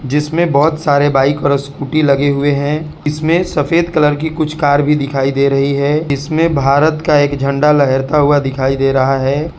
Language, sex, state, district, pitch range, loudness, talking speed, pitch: Hindi, male, Gujarat, Valsad, 140-155 Hz, -13 LUFS, 195 wpm, 145 Hz